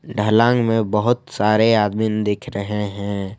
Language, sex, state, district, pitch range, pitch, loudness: Hindi, male, Jharkhand, Palamu, 105-115 Hz, 105 Hz, -19 LUFS